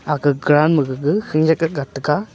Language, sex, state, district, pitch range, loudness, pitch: Wancho, male, Arunachal Pradesh, Longding, 140-155 Hz, -18 LUFS, 150 Hz